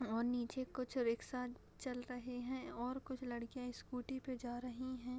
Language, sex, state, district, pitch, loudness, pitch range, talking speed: Hindi, female, Bihar, Madhepura, 250 Hz, -44 LUFS, 245-255 Hz, 185 wpm